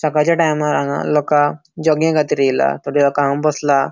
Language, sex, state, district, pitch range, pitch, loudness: Konkani, male, Goa, North and South Goa, 140-155 Hz, 150 Hz, -16 LUFS